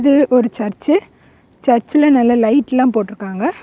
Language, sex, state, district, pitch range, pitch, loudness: Tamil, female, Tamil Nadu, Kanyakumari, 220-285 Hz, 250 Hz, -15 LUFS